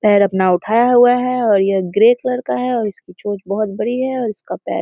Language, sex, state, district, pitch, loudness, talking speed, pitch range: Hindi, female, Bihar, Samastipur, 215 Hz, -16 LUFS, 260 wpm, 200-245 Hz